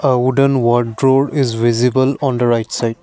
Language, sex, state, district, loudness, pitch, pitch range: English, male, Assam, Kamrup Metropolitan, -15 LUFS, 125 Hz, 120-135 Hz